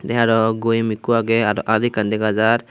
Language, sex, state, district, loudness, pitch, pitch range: Chakma, male, Tripura, Unakoti, -18 LUFS, 115 Hz, 110-115 Hz